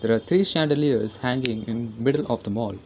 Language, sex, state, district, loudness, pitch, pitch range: English, female, Karnataka, Bangalore, -24 LUFS, 120 Hz, 115-145 Hz